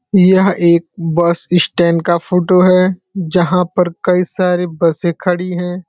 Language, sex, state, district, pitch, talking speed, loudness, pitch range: Hindi, male, Uttar Pradesh, Deoria, 180 Hz, 140 wpm, -13 LUFS, 170-185 Hz